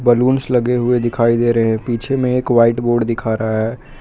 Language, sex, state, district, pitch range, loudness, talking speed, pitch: Hindi, male, Jharkhand, Palamu, 115-125 Hz, -16 LUFS, 225 wpm, 120 Hz